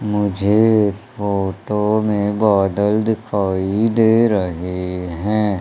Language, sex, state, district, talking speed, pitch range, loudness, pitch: Hindi, male, Madhya Pradesh, Umaria, 95 wpm, 95-110 Hz, -18 LUFS, 105 Hz